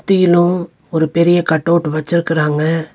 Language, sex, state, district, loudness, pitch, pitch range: Tamil, male, Tamil Nadu, Nilgiris, -14 LUFS, 165 Hz, 160-175 Hz